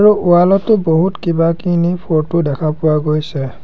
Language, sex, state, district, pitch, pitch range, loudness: Assamese, male, Assam, Sonitpur, 170 Hz, 155-180 Hz, -14 LUFS